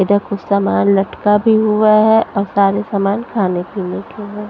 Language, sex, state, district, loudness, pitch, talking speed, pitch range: Hindi, female, Punjab, Pathankot, -15 LUFS, 200 Hz, 185 wpm, 195-215 Hz